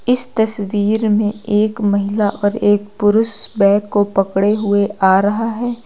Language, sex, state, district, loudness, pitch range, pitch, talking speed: Hindi, female, Uttar Pradesh, Lucknow, -16 LUFS, 205-220 Hz, 205 Hz, 155 wpm